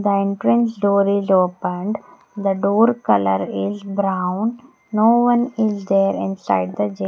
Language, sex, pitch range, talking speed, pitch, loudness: English, female, 185-220 Hz, 145 wpm, 200 Hz, -19 LUFS